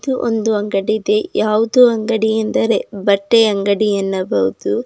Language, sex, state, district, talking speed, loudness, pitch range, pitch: Kannada, female, Karnataka, Bidar, 125 wpm, -16 LUFS, 200-225 Hz, 215 Hz